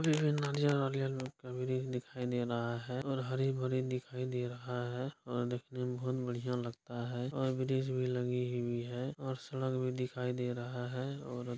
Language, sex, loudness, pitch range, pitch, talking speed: Angika, male, -37 LUFS, 125-130 Hz, 125 Hz, 170 wpm